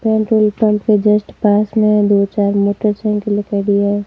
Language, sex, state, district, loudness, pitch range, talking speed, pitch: Hindi, female, Rajasthan, Barmer, -14 LUFS, 205-215 Hz, 190 wpm, 210 Hz